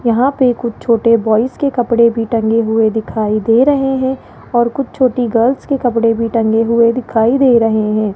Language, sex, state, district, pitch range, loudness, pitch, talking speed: Hindi, male, Rajasthan, Jaipur, 225-255 Hz, -13 LUFS, 235 Hz, 200 wpm